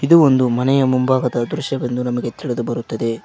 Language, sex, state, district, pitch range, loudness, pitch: Kannada, male, Karnataka, Koppal, 120-135 Hz, -18 LUFS, 125 Hz